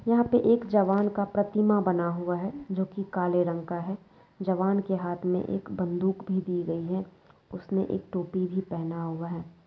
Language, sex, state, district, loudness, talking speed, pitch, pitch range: Hindi, female, West Bengal, Jalpaiguri, -28 LUFS, 200 wpm, 185 Hz, 175-195 Hz